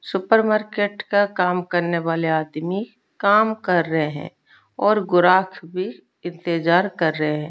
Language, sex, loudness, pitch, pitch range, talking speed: Hindi, female, -20 LUFS, 180 Hz, 165-205 Hz, 135 wpm